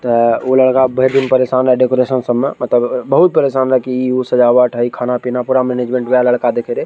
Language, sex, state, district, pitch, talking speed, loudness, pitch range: Maithili, male, Bihar, Araria, 125 Hz, 235 wpm, -13 LUFS, 125-130 Hz